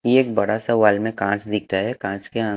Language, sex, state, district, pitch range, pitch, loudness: Hindi, male, Haryana, Jhajjar, 100-115 Hz, 105 Hz, -21 LUFS